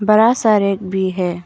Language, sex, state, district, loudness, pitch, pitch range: Hindi, female, Arunachal Pradesh, Papum Pare, -16 LUFS, 195 Hz, 185-215 Hz